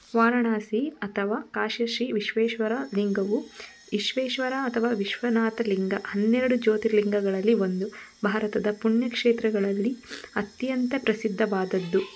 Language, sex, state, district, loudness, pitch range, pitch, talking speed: Kannada, female, Karnataka, Shimoga, -26 LUFS, 205-235 Hz, 220 Hz, 90 wpm